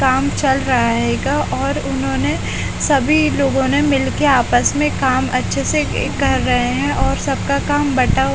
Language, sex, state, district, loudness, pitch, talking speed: Hindi, female, Haryana, Charkhi Dadri, -16 LUFS, 265 Hz, 160 wpm